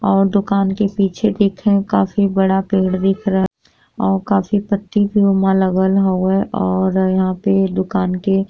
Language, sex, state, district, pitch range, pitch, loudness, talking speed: Bhojpuri, female, Uttar Pradesh, Deoria, 190-200 Hz, 195 Hz, -16 LUFS, 160 wpm